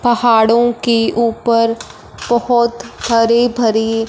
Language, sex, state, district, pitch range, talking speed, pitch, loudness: Hindi, female, Punjab, Fazilka, 230-240 Hz, 90 wpm, 235 Hz, -14 LUFS